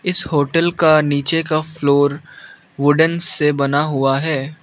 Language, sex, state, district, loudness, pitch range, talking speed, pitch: Hindi, male, Arunachal Pradesh, Lower Dibang Valley, -16 LUFS, 145-165 Hz, 140 wpm, 150 Hz